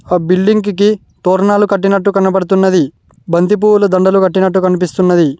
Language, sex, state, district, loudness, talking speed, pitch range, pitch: Telugu, male, Telangana, Mahabubabad, -12 LUFS, 110 wpm, 180-200 Hz, 190 Hz